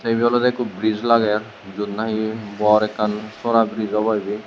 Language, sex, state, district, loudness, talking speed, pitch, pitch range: Chakma, male, Tripura, West Tripura, -20 LUFS, 175 wpm, 110 Hz, 105-115 Hz